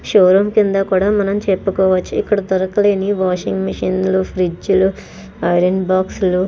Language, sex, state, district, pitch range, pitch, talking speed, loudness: Telugu, female, Andhra Pradesh, Chittoor, 185-195 Hz, 190 Hz, 155 wpm, -16 LUFS